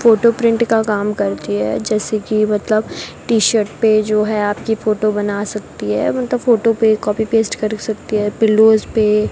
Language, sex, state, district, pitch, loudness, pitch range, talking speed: Hindi, female, Rajasthan, Bikaner, 215 Hz, -16 LUFS, 210-225 Hz, 195 wpm